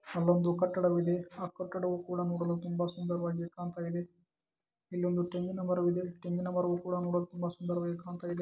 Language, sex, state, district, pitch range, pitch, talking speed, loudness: Kannada, male, Karnataka, Chamarajanagar, 175-180 Hz, 175 Hz, 115 wpm, -34 LUFS